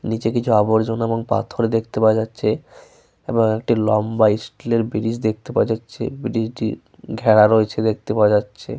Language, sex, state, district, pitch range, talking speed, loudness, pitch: Bengali, male, Jharkhand, Sahebganj, 110-115 Hz, 155 wpm, -19 LUFS, 110 Hz